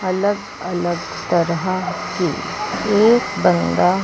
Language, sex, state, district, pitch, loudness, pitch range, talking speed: Hindi, female, Chandigarh, Chandigarh, 185 Hz, -19 LUFS, 175-200 Hz, 90 wpm